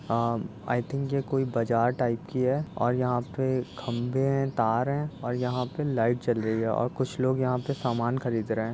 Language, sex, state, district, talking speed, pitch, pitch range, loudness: Hindi, male, Uttar Pradesh, Jyotiba Phule Nagar, 220 wpm, 125 Hz, 115-130 Hz, -28 LUFS